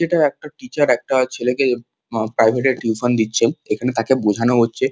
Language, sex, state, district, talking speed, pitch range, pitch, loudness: Bengali, male, West Bengal, Kolkata, 160 wpm, 115-130 Hz, 125 Hz, -18 LUFS